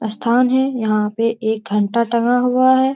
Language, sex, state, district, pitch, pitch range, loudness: Hindi, female, Bihar, Jamui, 235 Hz, 220-255 Hz, -17 LUFS